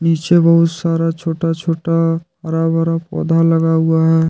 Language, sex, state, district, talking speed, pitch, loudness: Hindi, male, Jharkhand, Deoghar, 155 wpm, 165 Hz, -15 LUFS